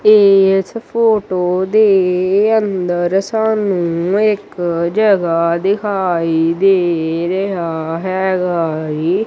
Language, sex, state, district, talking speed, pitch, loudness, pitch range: Punjabi, male, Punjab, Kapurthala, 80 wpm, 185 Hz, -15 LUFS, 170-205 Hz